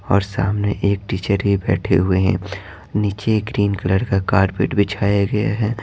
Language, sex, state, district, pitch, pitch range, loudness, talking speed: Hindi, male, Bihar, Patna, 100 Hz, 95-105 Hz, -19 LUFS, 165 wpm